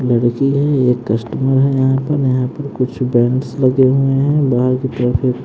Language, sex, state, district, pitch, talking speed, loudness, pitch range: Hindi, male, Haryana, Jhajjar, 130 Hz, 200 wpm, -15 LUFS, 125-135 Hz